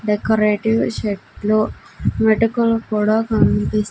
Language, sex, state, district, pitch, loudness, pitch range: Telugu, female, Andhra Pradesh, Sri Satya Sai, 215 Hz, -18 LUFS, 210-225 Hz